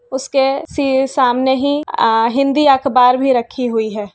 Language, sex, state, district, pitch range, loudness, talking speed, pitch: Hindi, female, Bihar, Kishanganj, 245-275 Hz, -14 LUFS, 160 wpm, 265 Hz